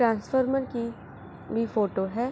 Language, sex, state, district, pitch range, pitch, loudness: Hindi, female, Bihar, Begusarai, 225-255 Hz, 235 Hz, -28 LUFS